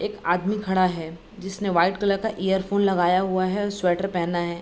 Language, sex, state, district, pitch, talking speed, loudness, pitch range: Hindi, female, Bihar, Vaishali, 190 Hz, 195 wpm, -23 LUFS, 175-195 Hz